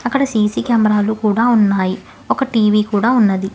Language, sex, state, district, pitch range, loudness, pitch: Telugu, female, Telangana, Hyderabad, 205-235 Hz, -15 LUFS, 215 Hz